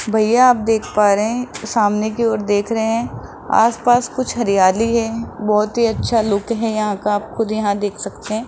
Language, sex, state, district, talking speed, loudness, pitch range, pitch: Hindi, male, Rajasthan, Jaipur, 205 wpm, -17 LUFS, 210-230 Hz, 220 Hz